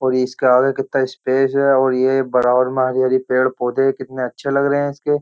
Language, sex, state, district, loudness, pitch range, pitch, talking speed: Hindi, male, Uttar Pradesh, Jyotiba Phule Nagar, -17 LUFS, 130-135 Hz, 130 Hz, 205 wpm